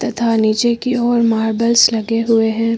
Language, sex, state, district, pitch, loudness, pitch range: Hindi, female, Uttar Pradesh, Lucknow, 230 Hz, -15 LUFS, 225-235 Hz